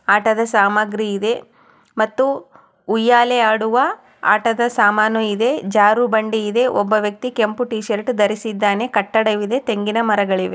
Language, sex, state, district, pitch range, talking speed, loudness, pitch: Kannada, female, Karnataka, Chamarajanagar, 210-235 Hz, 115 wpm, -17 LUFS, 220 Hz